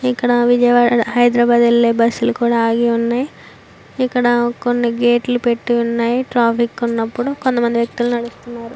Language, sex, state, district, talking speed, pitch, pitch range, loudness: Telugu, female, Andhra Pradesh, Visakhapatnam, 135 wpm, 240 Hz, 235-245 Hz, -16 LUFS